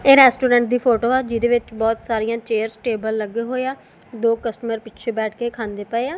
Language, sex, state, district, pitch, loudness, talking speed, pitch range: Punjabi, female, Punjab, Kapurthala, 230 Hz, -20 LUFS, 215 wpm, 225-245 Hz